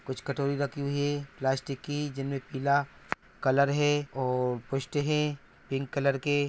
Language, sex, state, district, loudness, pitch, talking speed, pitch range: Hindi, male, Bihar, Araria, -30 LUFS, 140 Hz, 155 wpm, 135-145 Hz